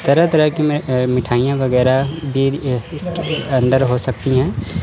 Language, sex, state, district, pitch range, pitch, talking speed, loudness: Hindi, male, Chandigarh, Chandigarh, 125-150 Hz, 135 Hz, 150 wpm, -17 LUFS